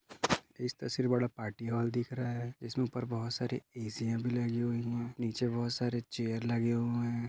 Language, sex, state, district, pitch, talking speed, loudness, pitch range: Hindi, male, Goa, North and South Goa, 120 Hz, 195 wpm, -35 LUFS, 115-125 Hz